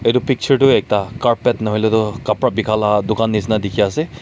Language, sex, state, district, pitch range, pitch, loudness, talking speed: Nagamese, male, Nagaland, Kohima, 105-125 Hz, 110 Hz, -16 LUFS, 200 wpm